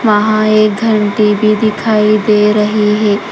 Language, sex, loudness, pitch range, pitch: Hindi, female, -11 LUFS, 210-215 Hz, 215 Hz